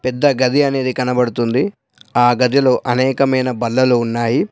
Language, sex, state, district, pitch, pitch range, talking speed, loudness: Telugu, male, Telangana, Adilabad, 125 Hz, 120-135 Hz, 120 wpm, -16 LUFS